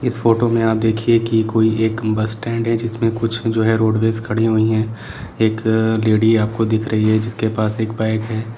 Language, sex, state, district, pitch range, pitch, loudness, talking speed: Hindi, male, Bihar, Saran, 110-115 Hz, 110 Hz, -17 LUFS, 210 wpm